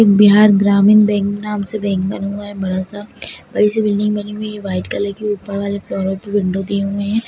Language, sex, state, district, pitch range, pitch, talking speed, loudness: Hindi, female, Bihar, Begusarai, 200-210 Hz, 205 Hz, 230 wpm, -16 LUFS